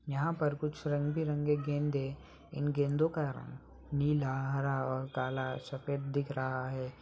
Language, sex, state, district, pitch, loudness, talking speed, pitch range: Hindi, male, Bihar, Saran, 140 Hz, -34 LUFS, 145 wpm, 130-150 Hz